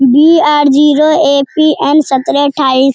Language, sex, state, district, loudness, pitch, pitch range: Hindi, female, Bihar, Jamui, -9 LUFS, 290 Hz, 275-305 Hz